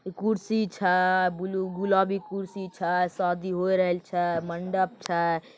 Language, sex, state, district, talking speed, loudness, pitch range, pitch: Maithili, male, Bihar, Begusarai, 150 wpm, -27 LUFS, 175-190 Hz, 185 Hz